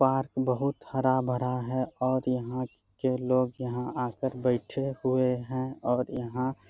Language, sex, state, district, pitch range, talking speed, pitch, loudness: Hindi, male, Bihar, Bhagalpur, 125-130 Hz, 145 wpm, 130 Hz, -30 LUFS